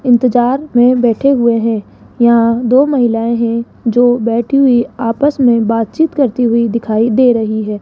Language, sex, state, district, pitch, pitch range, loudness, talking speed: Hindi, female, Rajasthan, Jaipur, 235 Hz, 230-250 Hz, -12 LUFS, 160 wpm